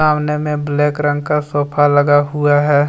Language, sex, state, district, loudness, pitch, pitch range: Hindi, male, Jharkhand, Deoghar, -15 LUFS, 145 Hz, 145-150 Hz